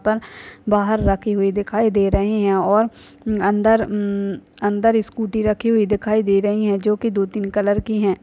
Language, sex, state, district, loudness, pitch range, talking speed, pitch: Hindi, female, Chhattisgarh, Sarguja, -19 LUFS, 200-220 Hz, 180 wpm, 210 Hz